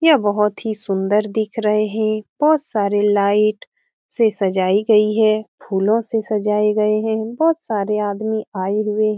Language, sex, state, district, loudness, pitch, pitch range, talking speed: Hindi, female, Bihar, Saran, -18 LUFS, 215 Hz, 205-220 Hz, 165 wpm